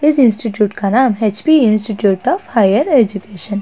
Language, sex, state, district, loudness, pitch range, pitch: Hindi, female, Uttar Pradesh, Budaun, -14 LUFS, 205-260 Hz, 215 Hz